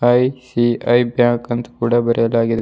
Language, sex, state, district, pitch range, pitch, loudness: Kannada, male, Karnataka, Bidar, 115-120 Hz, 120 Hz, -17 LUFS